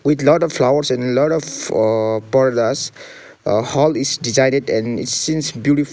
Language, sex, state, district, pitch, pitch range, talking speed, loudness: English, male, Sikkim, Gangtok, 135 Hz, 120-145 Hz, 180 wpm, -17 LUFS